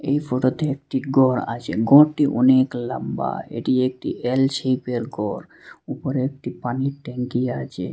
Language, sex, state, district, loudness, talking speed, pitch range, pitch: Bengali, male, Assam, Hailakandi, -21 LUFS, 145 wpm, 125-140 Hz, 130 Hz